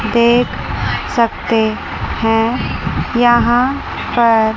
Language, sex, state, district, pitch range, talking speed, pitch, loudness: Hindi, female, Chandigarh, Chandigarh, 225-240 Hz, 65 wpm, 235 Hz, -15 LUFS